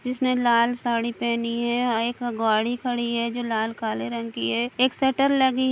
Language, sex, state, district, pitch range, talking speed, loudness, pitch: Hindi, female, Chhattisgarh, Kabirdham, 230-250 Hz, 200 wpm, -24 LUFS, 235 Hz